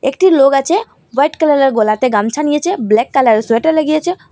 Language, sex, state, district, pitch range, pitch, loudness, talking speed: Bengali, female, Assam, Hailakandi, 235-310 Hz, 275 Hz, -13 LUFS, 165 wpm